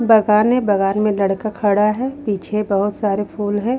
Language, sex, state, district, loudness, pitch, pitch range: Hindi, female, Haryana, Rohtak, -18 LUFS, 210 Hz, 205-220 Hz